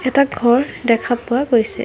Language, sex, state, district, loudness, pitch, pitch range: Assamese, female, Assam, Hailakandi, -17 LUFS, 245 Hz, 235-260 Hz